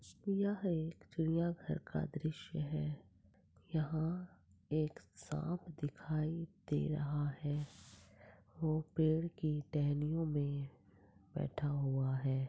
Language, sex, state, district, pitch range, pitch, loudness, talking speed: Hindi, female, Maharashtra, Pune, 140-160 Hz, 155 Hz, -39 LUFS, 100 wpm